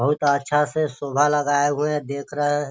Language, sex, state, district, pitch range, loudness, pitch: Hindi, male, Bihar, Sitamarhi, 140-150 Hz, -21 LUFS, 145 Hz